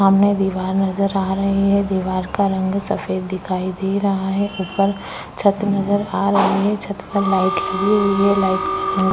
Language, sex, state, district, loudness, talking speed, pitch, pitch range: Hindi, female, Bihar, Vaishali, -19 LUFS, 190 wpm, 195 Hz, 190-200 Hz